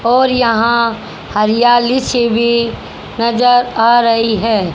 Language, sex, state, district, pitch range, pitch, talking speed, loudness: Hindi, female, Haryana, Charkhi Dadri, 225-240 Hz, 235 Hz, 115 wpm, -12 LUFS